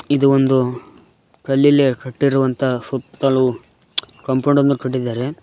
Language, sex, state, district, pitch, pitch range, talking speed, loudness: Kannada, male, Karnataka, Koppal, 135 Hz, 130-140 Hz, 90 wpm, -17 LUFS